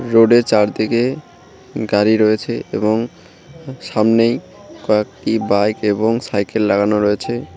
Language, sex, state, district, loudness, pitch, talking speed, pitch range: Bengali, male, West Bengal, Cooch Behar, -16 LUFS, 110 Hz, 95 wpm, 105-115 Hz